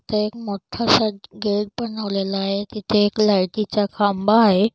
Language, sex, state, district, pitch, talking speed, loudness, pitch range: Marathi, female, Maharashtra, Solapur, 210 Hz, 140 wpm, -20 LUFS, 200-215 Hz